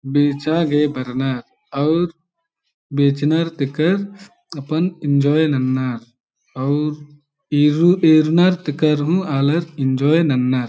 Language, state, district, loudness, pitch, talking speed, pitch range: Kurukh, Chhattisgarh, Jashpur, -18 LUFS, 150 Hz, 95 wpm, 140-165 Hz